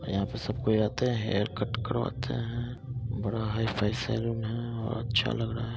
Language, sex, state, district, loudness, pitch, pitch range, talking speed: Hindi, male, Bihar, Muzaffarpur, -31 LUFS, 115 Hz, 110-120 Hz, 210 wpm